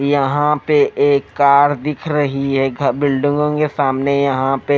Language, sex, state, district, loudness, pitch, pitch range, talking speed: Hindi, male, Odisha, Nuapada, -16 LUFS, 140 Hz, 135-145 Hz, 165 wpm